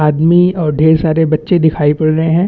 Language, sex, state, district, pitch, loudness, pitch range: Hindi, male, Chhattisgarh, Bastar, 160 Hz, -12 LUFS, 155-165 Hz